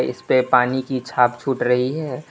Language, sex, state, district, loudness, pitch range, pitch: Hindi, male, Tripura, West Tripura, -19 LUFS, 125-130 Hz, 125 Hz